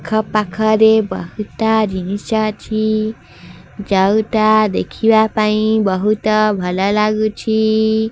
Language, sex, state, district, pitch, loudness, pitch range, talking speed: Odia, female, Odisha, Sambalpur, 215 Hz, -15 LUFS, 210-220 Hz, 80 wpm